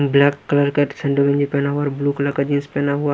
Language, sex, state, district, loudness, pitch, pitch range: Hindi, male, Punjab, Pathankot, -19 LUFS, 140 Hz, 140-145 Hz